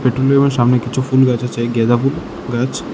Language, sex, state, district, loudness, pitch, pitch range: Bengali, male, Tripura, West Tripura, -16 LUFS, 125 Hz, 120-130 Hz